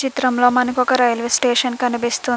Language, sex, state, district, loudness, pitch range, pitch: Telugu, female, Andhra Pradesh, Krishna, -17 LUFS, 240-250 Hz, 245 Hz